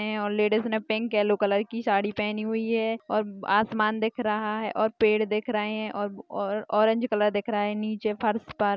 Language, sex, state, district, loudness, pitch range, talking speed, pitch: Hindi, female, Chhattisgarh, Sarguja, -26 LUFS, 210-220 Hz, 200 wpm, 215 Hz